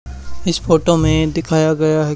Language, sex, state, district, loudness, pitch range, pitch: Hindi, male, Haryana, Charkhi Dadri, -16 LUFS, 155-165 Hz, 155 Hz